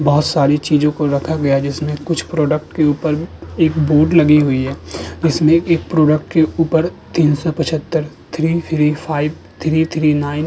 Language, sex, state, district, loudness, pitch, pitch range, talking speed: Hindi, male, Uttar Pradesh, Budaun, -16 LUFS, 155 Hz, 150-160 Hz, 180 wpm